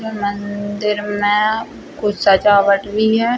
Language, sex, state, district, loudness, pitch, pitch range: Hindi, female, Chhattisgarh, Rajnandgaon, -16 LUFS, 205 Hz, 205-220 Hz